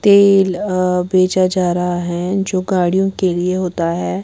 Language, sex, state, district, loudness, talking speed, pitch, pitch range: Hindi, female, Bihar, West Champaran, -16 LUFS, 155 wpm, 185 Hz, 175-190 Hz